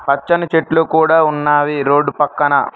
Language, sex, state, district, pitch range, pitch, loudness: Telugu, male, Telangana, Mahabubabad, 145-160 Hz, 155 Hz, -14 LUFS